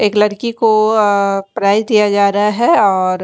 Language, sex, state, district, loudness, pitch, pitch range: Hindi, female, Chandigarh, Chandigarh, -13 LUFS, 210 Hz, 200-215 Hz